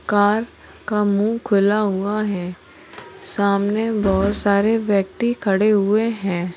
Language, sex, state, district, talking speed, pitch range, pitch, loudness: Hindi, female, Chhattisgarh, Rajnandgaon, 120 wpm, 200-220 Hz, 205 Hz, -19 LUFS